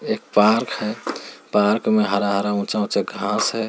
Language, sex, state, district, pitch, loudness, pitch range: Hindi, male, Bihar, Jamui, 105 Hz, -20 LUFS, 100-110 Hz